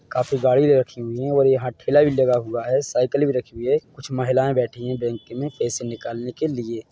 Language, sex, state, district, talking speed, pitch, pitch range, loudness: Hindi, male, Chhattisgarh, Bilaspur, 245 wpm, 125 Hz, 120-135 Hz, -21 LUFS